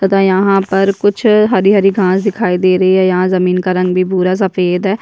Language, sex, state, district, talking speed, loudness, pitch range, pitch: Hindi, female, Chhattisgarh, Bastar, 240 wpm, -12 LUFS, 185-195 Hz, 190 Hz